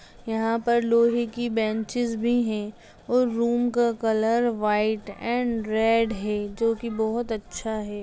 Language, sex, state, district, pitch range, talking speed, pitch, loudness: Hindi, female, Bihar, Darbhanga, 220-235 Hz, 150 wpm, 225 Hz, -25 LUFS